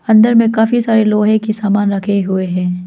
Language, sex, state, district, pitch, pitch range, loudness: Hindi, female, Arunachal Pradesh, Lower Dibang Valley, 210 Hz, 195-220 Hz, -13 LUFS